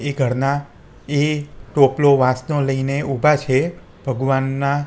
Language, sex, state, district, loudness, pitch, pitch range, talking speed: Gujarati, male, Gujarat, Gandhinagar, -19 LUFS, 140 Hz, 130-145 Hz, 110 wpm